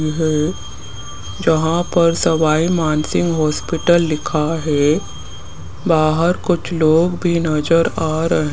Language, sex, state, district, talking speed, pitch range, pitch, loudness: Hindi, male, Rajasthan, Jaipur, 115 wpm, 150-165 Hz, 160 Hz, -17 LUFS